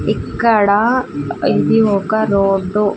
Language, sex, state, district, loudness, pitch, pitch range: Telugu, female, Andhra Pradesh, Sri Satya Sai, -15 LUFS, 210 Hz, 200-225 Hz